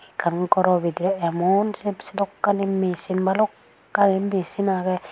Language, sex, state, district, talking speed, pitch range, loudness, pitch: Chakma, female, Tripura, Unakoti, 105 wpm, 180-200 Hz, -22 LUFS, 190 Hz